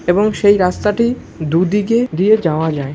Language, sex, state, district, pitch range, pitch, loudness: Bengali, male, West Bengal, Malda, 165-215 Hz, 200 Hz, -15 LUFS